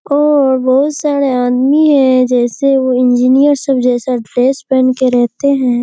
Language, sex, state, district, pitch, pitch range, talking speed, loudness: Hindi, female, Bihar, Kishanganj, 260 Hz, 250-280 Hz, 155 wpm, -11 LUFS